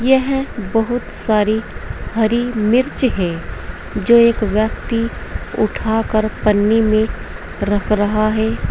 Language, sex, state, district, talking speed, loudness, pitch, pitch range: Hindi, female, Uttar Pradesh, Saharanpur, 105 wpm, -17 LUFS, 220 Hz, 210-235 Hz